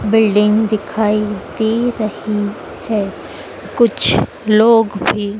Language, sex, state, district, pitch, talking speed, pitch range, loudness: Hindi, female, Madhya Pradesh, Dhar, 215 Hz, 90 wpm, 210-220 Hz, -15 LUFS